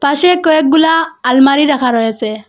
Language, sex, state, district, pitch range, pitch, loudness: Bengali, female, Assam, Hailakandi, 245-320 Hz, 285 Hz, -11 LUFS